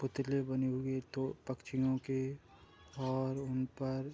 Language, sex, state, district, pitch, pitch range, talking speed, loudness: Hindi, male, Bihar, Gopalganj, 130 Hz, 130-135 Hz, 130 wpm, -38 LUFS